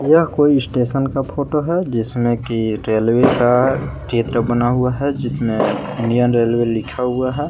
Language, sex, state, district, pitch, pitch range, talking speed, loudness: Hindi, male, Jharkhand, Palamu, 125 Hz, 115-135 Hz, 160 wpm, -17 LUFS